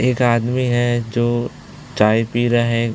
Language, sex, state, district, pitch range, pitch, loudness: Hindi, male, Chhattisgarh, Bilaspur, 115-125 Hz, 120 Hz, -18 LUFS